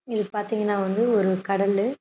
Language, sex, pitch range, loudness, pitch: Tamil, female, 200-220 Hz, -24 LUFS, 210 Hz